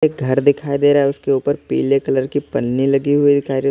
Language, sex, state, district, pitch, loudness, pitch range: Hindi, male, Uttar Pradesh, Lalitpur, 140 Hz, -17 LUFS, 135-145 Hz